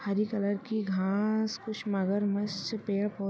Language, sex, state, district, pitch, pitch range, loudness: Hindi, female, Bihar, Bhagalpur, 205 Hz, 200-215 Hz, -31 LUFS